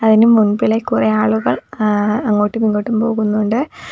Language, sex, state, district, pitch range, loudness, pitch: Malayalam, female, Kerala, Kollam, 205-225 Hz, -15 LUFS, 215 Hz